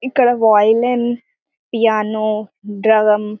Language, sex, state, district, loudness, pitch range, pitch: Telugu, female, Telangana, Karimnagar, -15 LUFS, 210-240 Hz, 220 Hz